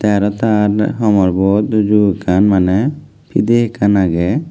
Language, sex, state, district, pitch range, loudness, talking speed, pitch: Chakma, male, Tripura, West Tripura, 100-110 Hz, -14 LUFS, 135 wpm, 105 Hz